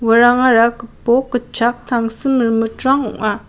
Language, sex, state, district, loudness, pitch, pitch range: Garo, female, Meghalaya, West Garo Hills, -15 LUFS, 235 Hz, 230-250 Hz